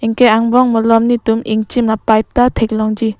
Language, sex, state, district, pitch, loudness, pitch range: Karbi, female, Assam, Karbi Anglong, 225 Hz, -13 LUFS, 220-240 Hz